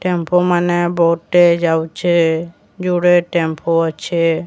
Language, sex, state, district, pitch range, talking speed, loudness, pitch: Odia, female, Odisha, Sambalpur, 165-175 Hz, 95 wpm, -15 LUFS, 170 Hz